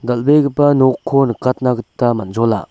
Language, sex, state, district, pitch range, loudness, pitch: Garo, male, Meghalaya, West Garo Hills, 115-135 Hz, -15 LUFS, 125 Hz